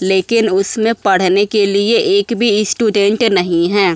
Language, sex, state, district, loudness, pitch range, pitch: Hindi, female, Uttar Pradesh, Budaun, -13 LUFS, 190-225 Hz, 205 Hz